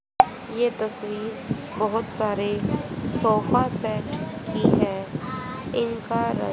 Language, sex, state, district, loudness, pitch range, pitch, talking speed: Hindi, female, Haryana, Jhajjar, -25 LUFS, 210-235 Hz, 225 Hz, 80 wpm